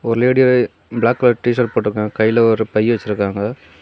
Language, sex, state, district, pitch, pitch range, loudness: Tamil, male, Tamil Nadu, Kanyakumari, 115 Hz, 105-120 Hz, -16 LUFS